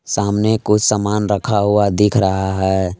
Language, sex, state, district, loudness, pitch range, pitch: Hindi, male, Jharkhand, Palamu, -16 LUFS, 95-105 Hz, 100 Hz